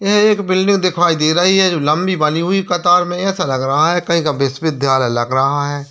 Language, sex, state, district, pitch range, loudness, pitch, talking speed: Hindi, male, Bihar, Jamui, 145-185 Hz, -15 LUFS, 170 Hz, 255 wpm